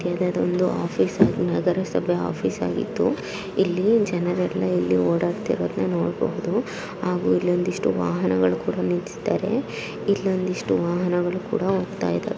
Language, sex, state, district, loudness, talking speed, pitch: Kannada, female, Karnataka, Chamarajanagar, -23 LUFS, 110 wpm, 175 Hz